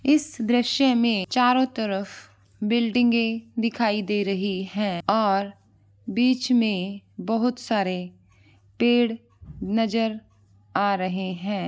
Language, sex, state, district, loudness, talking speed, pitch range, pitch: Hindi, female, Andhra Pradesh, Guntur, -24 LUFS, 80 wpm, 190-235 Hz, 210 Hz